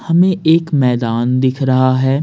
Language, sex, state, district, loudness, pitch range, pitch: Hindi, male, Bihar, Patna, -14 LUFS, 130-160 Hz, 130 Hz